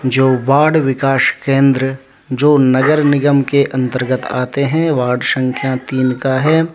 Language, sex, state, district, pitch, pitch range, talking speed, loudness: Hindi, male, Jharkhand, Deoghar, 135 Hz, 130-145 Hz, 140 wpm, -14 LUFS